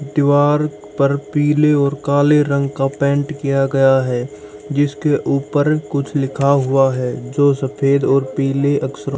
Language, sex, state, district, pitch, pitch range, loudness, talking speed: Hindi, male, Haryana, Jhajjar, 140 Hz, 135-145 Hz, -16 LUFS, 145 wpm